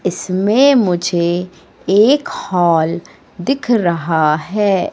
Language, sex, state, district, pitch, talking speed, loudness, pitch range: Hindi, female, Madhya Pradesh, Katni, 180 Hz, 85 wpm, -15 LUFS, 170-215 Hz